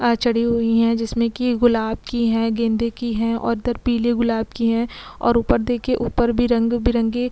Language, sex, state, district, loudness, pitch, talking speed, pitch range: Hindi, female, Chhattisgarh, Korba, -20 LUFS, 235 Hz, 205 wpm, 230-240 Hz